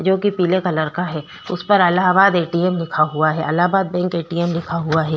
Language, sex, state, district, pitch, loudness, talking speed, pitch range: Hindi, female, Chhattisgarh, Korba, 175 Hz, -18 LUFS, 265 wpm, 160-180 Hz